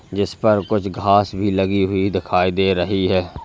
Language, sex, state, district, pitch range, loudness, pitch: Hindi, male, Uttar Pradesh, Lalitpur, 95-100 Hz, -18 LUFS, 95 Hz